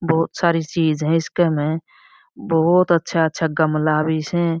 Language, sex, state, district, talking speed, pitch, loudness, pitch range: Marwari, female, Rajasthan, Churu, 155 wpm, 165 Hz, -19 LUFS, 155-170 Hz